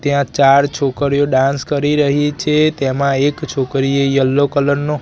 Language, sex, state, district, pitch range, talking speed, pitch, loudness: Gujarati, male, Gujarat, Gandhinagar, 135-145 Hz, 155 wpm, 140 Hz, -15 LUFS